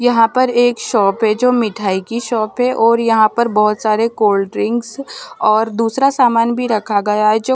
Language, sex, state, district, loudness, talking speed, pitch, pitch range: Hindi, male, Punjab, Fazilka, -14 LUFS, 190 wpm, 225 Hz, 215-240 Hz